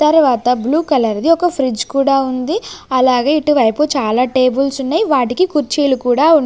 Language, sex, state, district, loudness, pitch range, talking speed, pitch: Telugu, female, Andhra Pradesh, Sri Satya Sai, -14 LUFS, 250-300 Hz, 150 wpm, 270 Hz